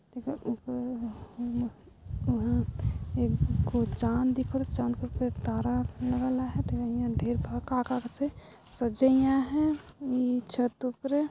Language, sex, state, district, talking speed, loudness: Sadri, female, Chhattisgarh, Jashpur, 135 wpm, -30 LUFS